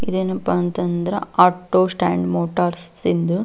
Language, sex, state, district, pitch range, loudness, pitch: Kannada, female, Karnataka, Belgaum, 170-185 Hz, -20 LUFS, 175 Hz